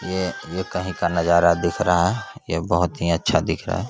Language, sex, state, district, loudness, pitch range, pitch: Hindi, male, Bihar, Saran, -21 LUFS, 85-95 Hz, 90 Hz